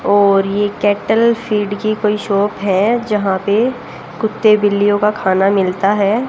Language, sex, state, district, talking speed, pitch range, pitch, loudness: Hindi, female, Haryana, Jhajjar, 150 wpm, 200-215 Hz, 205 Hz, -15 LUFS